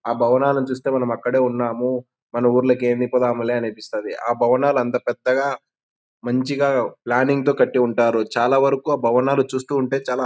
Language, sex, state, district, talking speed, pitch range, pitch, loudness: Telugu, male, Andhra Pradesh, Anantapur, 165 wpm, 120-135 Hz, 125 Hz, -20 LUFS